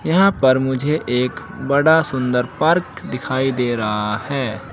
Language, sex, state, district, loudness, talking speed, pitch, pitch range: Hindi, male, Uttar Pradesh, Shamli, -18 LUFS, 140 wpm, 130 Hz, 125-150 Hz